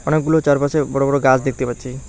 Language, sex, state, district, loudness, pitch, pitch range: Bengali, male, West Bengal, Alipurduar, -17 LUFS, 135 Hz, 130-145 Hz